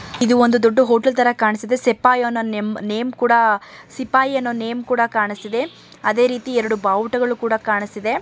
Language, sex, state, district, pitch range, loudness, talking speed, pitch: Kannada, male, Karnataka, Mysore, 220-250 Hz, -18 LUFS, 140 wpm, 235 Hz